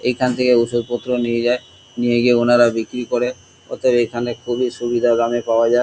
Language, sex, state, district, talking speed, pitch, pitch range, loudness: Bengali, male, West Bengal, Kolkata, 175 wpm, 120 Hz, 120-125 Hz, -18 LUFS